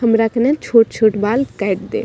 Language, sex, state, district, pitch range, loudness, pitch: Maithili, female, Bihar, Madhepura, 210-235 Hz, -16 LUFS, 225 Hz